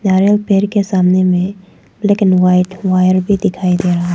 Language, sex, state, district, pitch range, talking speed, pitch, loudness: Hindi, female, Arunachal Pradesh, Papum Pare, 180-200 Hz, 175 wpm, 185 Hz, -13 LUFS